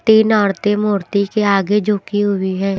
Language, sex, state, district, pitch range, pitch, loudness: Hindi, female, Maharashtra, Washim, 195-210 Hz, 205 Hz, -16 LUFS